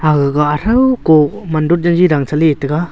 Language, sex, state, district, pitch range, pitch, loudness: Wancho, male, Arunachal Pradesh, Longding, 150-170 Hz, 155 Hz, -13 LUFS